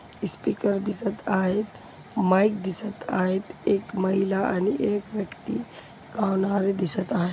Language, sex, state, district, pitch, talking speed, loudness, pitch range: Marathi, female, Maharashtra, Chandrapur, 195 Hz, 115 wpm, -26 LUFS, 190-205 Hz